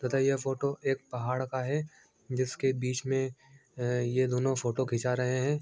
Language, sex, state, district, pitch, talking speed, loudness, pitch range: Hindi, male, Bihar, Begusarai, 130 Hz, 190 wpm, -31 LUFS, 125-135 Hz